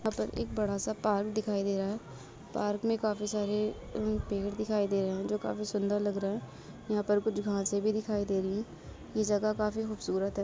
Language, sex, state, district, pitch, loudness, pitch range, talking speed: Hindi, female, Uttar Pradesh, Jalaun, 205 Hz, -32 LUFS, 200-215 Hz, 230 wpm